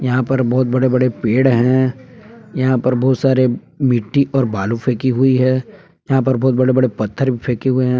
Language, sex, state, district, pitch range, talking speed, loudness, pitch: Hindi, male, Jharkhand, Palamu, 125-130 Hz, 205 wpm, -16 LUFS, 130 Hz